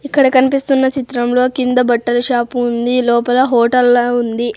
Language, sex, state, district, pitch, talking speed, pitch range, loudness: Telugu, female, Andhra Pradesh, Sri Satya Sai, 245 Hz, 130 wpm, 240-260 Hz, -14 LUFS